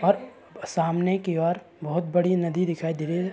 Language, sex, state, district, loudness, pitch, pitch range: Hindi, male, Uttar Pradesh, Varanasi, -26 LUFS, 175 Hz, 165-180 Hz